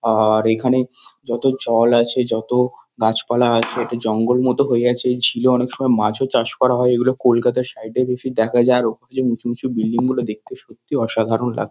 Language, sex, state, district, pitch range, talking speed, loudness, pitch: Bengali, male, West Bengal, Kolkata, 115-125 Hz, 195 wpm, -18 LUFS, 120 Hz